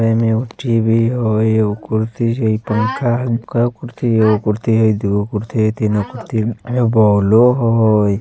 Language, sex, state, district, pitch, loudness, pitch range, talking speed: Bajjika, male, Bihar, Vaishali, 110 Hz, -16 LUFS, 110-120 Hz, 175 wpm